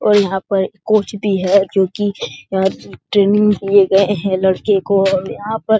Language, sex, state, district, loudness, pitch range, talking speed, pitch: Hindi, male, Bihar, Jahanabad, -15 LUFS, 190-205 Hz, 195 wpm, 195 Hz